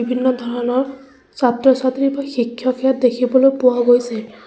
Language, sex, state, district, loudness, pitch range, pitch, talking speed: Assamese, female, Assam, Sonitpur, -17 LUFS, 240-265 Hz, 255 Hz, 105 wpm